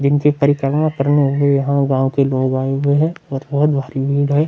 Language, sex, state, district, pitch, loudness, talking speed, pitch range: Hindi, male, Bihar, Vaishali, 140 Hz, -16 LUFS, 240 wpm, 135-145 Hz